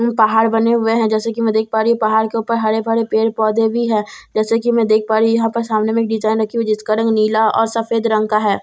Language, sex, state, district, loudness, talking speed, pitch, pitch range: Hindi, female, Bihar, Katihar, -16 LUFS, 285 wpm, 220 Hz, 220-230 Hz